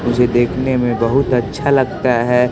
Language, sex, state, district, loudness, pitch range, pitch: Hindi, male, Bihar, West Champaran, -15 LUFS, 120-130 Hz, 125 Hz